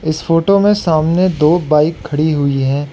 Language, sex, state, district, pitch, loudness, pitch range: Hindi, male, Arunachal Pradesh, Lower Dibang Valley, 155 Hz, -13 LUFS, 150-170 Hz